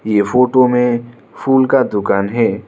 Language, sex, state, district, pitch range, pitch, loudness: Hindi, male, Arunachal Pradesh, Lower Dibang Valley, 105-125 Hz, 120 Hz, -14 LUFS